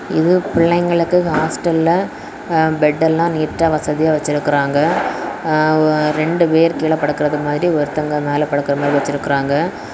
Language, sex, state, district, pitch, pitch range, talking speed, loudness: Tamil, female, Tamil Nadu, Kanyakumari, 155 Hz, 150-165 Hz, 110 wpm, -16 LUFS